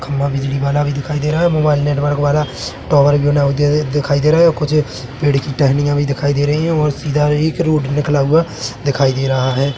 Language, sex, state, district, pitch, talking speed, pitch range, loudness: Hindi, male, Chhattisgarh, Bilaspur, 145 Hz, 220 wpm, 140-150 Hz, -15 LUFS